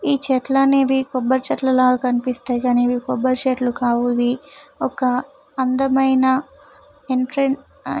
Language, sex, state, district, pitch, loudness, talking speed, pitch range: Telugu, female, Telangana, Nalgonda, 260 Hz, -19 LUFS, 120 wpm, 250-275 Hz